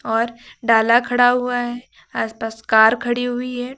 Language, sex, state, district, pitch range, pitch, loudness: Hindi, female, Uttar Pradesh, Lucknow, 225-245 Hz, 240 Hz, -18 LUFS